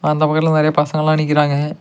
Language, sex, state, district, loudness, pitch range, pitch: Tamil, male, Tamil Nadu, Nilgiris, -15 LUFS, 150-155 Hz, 155 Hz